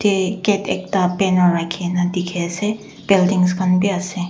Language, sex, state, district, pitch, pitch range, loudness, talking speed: Nagamese, female, Nagaland, Dimapur, 185 Hz, 180-195 Hz, -18 LUFS, 125 wpm